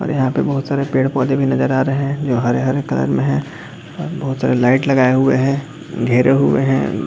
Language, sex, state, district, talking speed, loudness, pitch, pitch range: Hindi, male, Jharkhand, Jamtara, 245 wpm, -16 LUFS, 135 Hz, 125-140 Hz